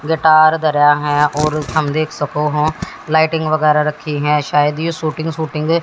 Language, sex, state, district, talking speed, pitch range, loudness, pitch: Hindi, female, Haryana, Jhajjar, 175 wpm, 150-160 Hz, -15 LUFS, 155 Hz